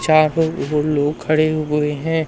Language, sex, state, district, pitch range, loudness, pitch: Hindi, male, Madhya Pradesh, Umaria, 150-155 Hz, -18 LUFS, 155 Hz